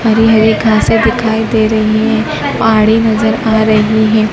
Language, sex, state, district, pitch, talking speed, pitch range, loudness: Hindi, female, Madhya Pradesh, Dhar, 220 Hz, 165 wpm, 215-225 Hz, -10 LUFS